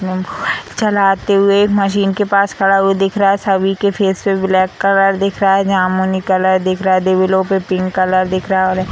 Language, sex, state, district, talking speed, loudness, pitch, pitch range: Hindi, female, Bihar, Samastipur, 220 wpm, -14 LUFS, 195 Hz, 185-195 Hz